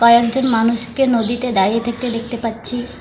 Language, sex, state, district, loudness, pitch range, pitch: Bengali, female, West Bengal, Alipurduar, -17 LUFS, 230-245 Hz, 235 Hz